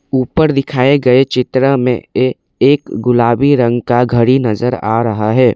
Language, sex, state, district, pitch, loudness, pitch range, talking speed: Hindi, male, Assam, Kamrup Metropolitan, 125 Hz, -13 LUFS, 120-135 Hz, 150 wpm